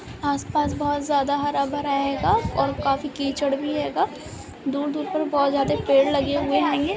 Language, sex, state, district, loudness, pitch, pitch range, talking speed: Hindi, female, Uttar Pradesh, Muzaffarnagar, -23 LUFS, 285 Hz, 275-290 Hz, 180 wpm